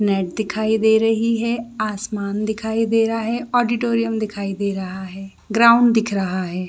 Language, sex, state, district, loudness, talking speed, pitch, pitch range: Hindi, female, Jharkhand, Jamtara, -19 LUFS, 170 wpm, 220 Hz, 200-230 Hz